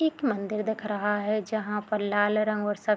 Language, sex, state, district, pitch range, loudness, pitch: Hindi, female, Bihar, Madhepura, 205-215 Hz, -28 LUFS, 210 Hz